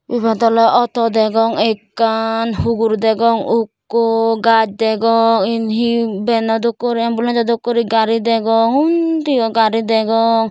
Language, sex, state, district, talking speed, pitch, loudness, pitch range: Chakma, female, Tripura, Dhalai, 130 wpm, 230 Hz, -15 LUFS, 225-235 Hz